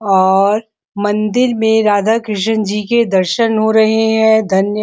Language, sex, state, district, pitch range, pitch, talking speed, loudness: Hindi, female, Uttar Pradesh, Muzaffarnagar, 205-220 Hz, 220 Hz, 160 wpm, -13 LUFS